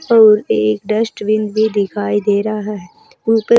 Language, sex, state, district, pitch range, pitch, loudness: Hindi, female, Uttar Pradesh, Saharanpur, 205-220 Hz, 210 Hz, -15 LUFS